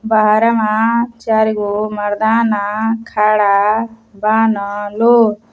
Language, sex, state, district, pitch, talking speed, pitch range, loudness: Bhojpuri, female, Uttar Pradesh, Deoria, 220 Hz, 75 wpm, 210-225 Hz, -14 LUFS